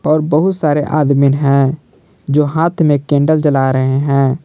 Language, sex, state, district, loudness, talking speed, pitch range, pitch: Hindi, male, Jharkhand, Palamu, -13 LUFS, 160 wpm, 140-155 Hz, 145 Hz